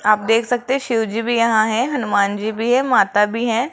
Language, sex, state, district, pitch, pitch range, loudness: Hindi, female, Rajasthan, Jaipur, 230 Hz, 215-245 Hz, -18 LUFS